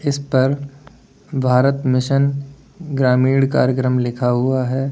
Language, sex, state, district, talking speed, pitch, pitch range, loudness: Hindi, male, Uttar Pradesh, Lalitpur, 110 wpm, 135 Hz, 130-140 Hz, -17 LUFS